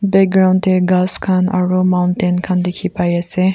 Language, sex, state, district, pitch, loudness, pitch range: Nagamese, female, Nagaland, Kohima, 185 Hz, -15 LUFS, 180-185 Hz